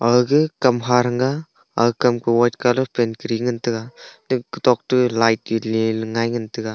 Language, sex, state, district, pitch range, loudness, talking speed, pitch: Wancho, male, Arunachal Pradesh, Longding, 115-125 Hz, -19 LUFS, 195 wpm, 120 Hz